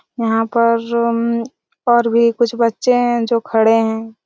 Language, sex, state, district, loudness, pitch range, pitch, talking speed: Hindi, female, Chhattisgarh, Raigarh, -16 LUFS, 225-235 Hz, 235 Hz, 155 wpm